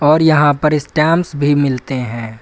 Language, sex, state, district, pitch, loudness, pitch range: Hindi, male, Uttar Pradesh, Lucknow, 145 Hz, -14 LUFS, 130-155 Hz